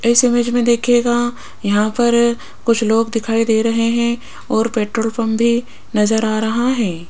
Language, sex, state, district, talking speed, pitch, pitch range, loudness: Hindi, female, Rajasthan, Jaipur, 170 wpm, 230 Hz, 220-240 Hz, -16 LUFS